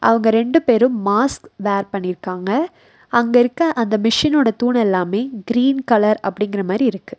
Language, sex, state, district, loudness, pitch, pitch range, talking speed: Tamil, female, Tamil Nadu, Nilgiris, -17 LUFS, 230 Hz, 205-250 Hz, 135 wpm